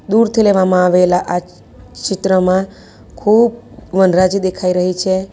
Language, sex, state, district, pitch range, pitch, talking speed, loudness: Gujarati, female, Gujarat, Valsad, 180-195 Hz, 190 Hz, 110 wpm, -14 LUFS